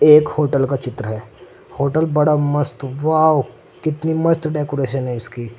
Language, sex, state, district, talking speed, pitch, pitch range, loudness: Hindi, male, Uttar Pradesh, Saharanpur, 150 wpm, 145 Hz, 130-155 Hz, -18 LUFS